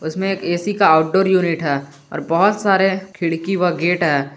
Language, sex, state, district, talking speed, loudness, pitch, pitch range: Hindi, male, Jharkhand, Garhwa, 190 wpm, -17 LUFS, 175 Hz, 160-190 Hz